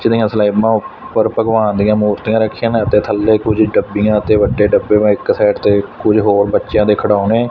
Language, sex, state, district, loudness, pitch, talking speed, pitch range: Punjabi, male, Punjab, Fazilka, -13 LUFS, 105 Hz, 190 wpm, 105-110 Hz